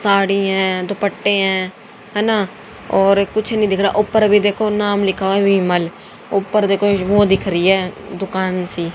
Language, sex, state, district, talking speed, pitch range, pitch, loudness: Hindi, female, Haryana, Jhajjar, 195 wpm, 190-205 Hz, 195 Hz, -16 LUFS